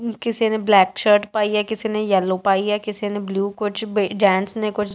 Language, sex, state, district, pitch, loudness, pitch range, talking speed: Punjabi, female, Punjab, Kapurthala, 210 Hz, -19 LUFS, 200-215 Hz, 230 wpm